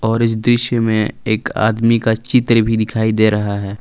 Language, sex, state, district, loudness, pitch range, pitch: Hindi, male, Jharkhand, Palamu, -15 LUFS, 110-115 Hz, 110 Hz